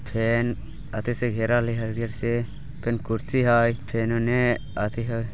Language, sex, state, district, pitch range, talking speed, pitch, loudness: Bajjika, male, Bihar, Vaishali, 115-120 Hz, 155 wpm, 115 Hz, -25 LUFS